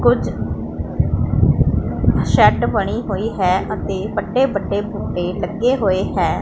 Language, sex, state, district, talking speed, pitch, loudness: Punjabi, female, Punjab, Pathankot, 110 wpm, 175 Hz, -18 LUFS